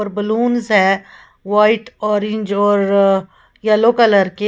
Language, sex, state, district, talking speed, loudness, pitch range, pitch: Hindi, female, Uttar Pradesh, Lalitpur, 105 wpm, -15 LUFS, 200-215 Hz, 210 Hz